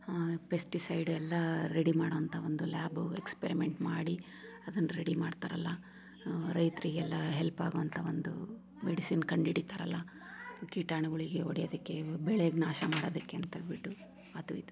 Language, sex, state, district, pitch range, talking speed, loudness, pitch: Kannada, female, Karnataka, Raichur, 160-175 Hz, 115 wpm, -36 LUFS, 165 Hz